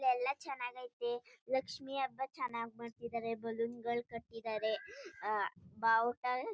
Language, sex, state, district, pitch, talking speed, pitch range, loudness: Kannada, female, Karnataka, Chamarajanagar, 240 Hz, 100 wpm, 230-265 Hz, -39 LUFS